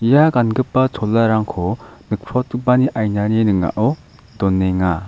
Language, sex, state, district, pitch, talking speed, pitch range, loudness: Garo, male, Meghalaya, South Garo Hills, 110 Hz, 85 wpm, 105-125 Hz, -17 LUFS